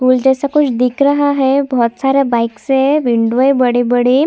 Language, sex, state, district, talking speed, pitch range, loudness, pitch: Hindi, female, Chhattisgarh, Kabirdham, 195 wpm, 245-275 Hz, -13 LUFS, 265 Hz